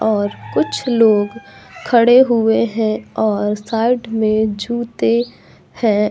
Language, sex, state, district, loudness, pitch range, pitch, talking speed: Hindi, female, Uttar Pradesh, Lucknow, -16 LUFS, 205-230 Hz, 220 Hz, 110 wpm